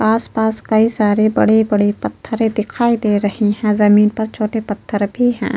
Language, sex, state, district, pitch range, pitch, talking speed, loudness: Hindi, female, Uttar Pradesh, Jyotiba Phule Nagar, 210-225 Hz, 220 Hz, 160 wpm, -16 LUFS